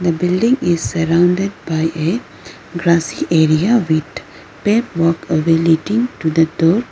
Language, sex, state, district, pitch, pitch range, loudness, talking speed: English, female, Arunachal Pradesh, Lower Dibang Valley, 170 Hz, 165-195 Hz, -16 LUFS, 130 wpm